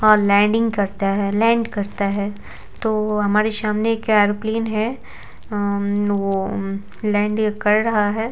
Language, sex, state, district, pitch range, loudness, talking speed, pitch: Hindi, female, Bihar, Vaishali, 200-220 Hz, -20 LUFS, 145 wpm, 210 Hz